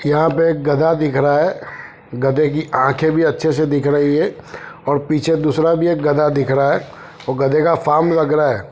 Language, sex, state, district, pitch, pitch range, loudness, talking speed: Hindi, male, Punjab, Fazilka, 150 Hz, 145-160 Hz, -16 LUFS, 215 wpm